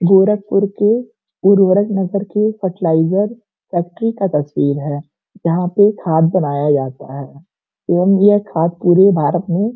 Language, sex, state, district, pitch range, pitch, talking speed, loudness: Hindi, female, Uttar Pradesh, Gorakhpur, 160-205 Hz, 190 Hz, 140 wpm, -15 LUFS